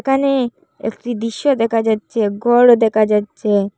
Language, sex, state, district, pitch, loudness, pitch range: Bengali, female, Assam, Hailakandi, 230 Hz, -16 LUFS, 215-245 Hz